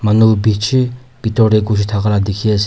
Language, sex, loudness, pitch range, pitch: Nagamese, male, -14 LUFS, 105-110 Hz, 110 Hz